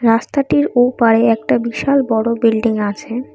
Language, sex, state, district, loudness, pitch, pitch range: Bengali, female, Assam, Kamrup Metropolitan, -15 LUFS, 230 Hz, 225-255 Hz